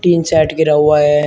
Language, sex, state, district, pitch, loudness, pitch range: Hindi, male, Uttar Pradesh, Shamli, 155 Hz, -12 LUFS, 150-160 Hz